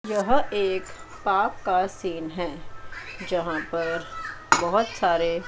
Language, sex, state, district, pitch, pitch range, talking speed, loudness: Hindi, female, Chandigarh, Chandigarh, 185 Hz, 165-205 Hz, 110 wpm, -25 LUFS